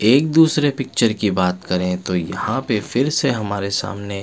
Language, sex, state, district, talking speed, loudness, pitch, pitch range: Hindi, male, Bihar, Patna, 170 wpm, -19 LUFS, 110 Hz, 95-135 Hz